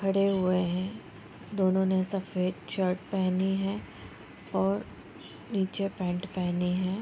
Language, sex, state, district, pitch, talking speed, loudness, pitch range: Hindi, female, Bihar, Gopalganj, 185 Hz, 130 wpm, -30 LUFS, 180-195 Hz